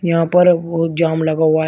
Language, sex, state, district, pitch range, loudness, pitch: Hindi, male, Uttar Pradesh, Shamli, 160-170 Hz, -15 LUFS, 165 Hz